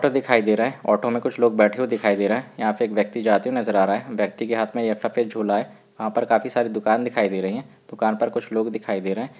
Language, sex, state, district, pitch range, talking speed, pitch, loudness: Hindi, male, Uttarakhand, Uttarkashi, 110-120 Hz, 320 wpm, 110 Hz, -22 LUFS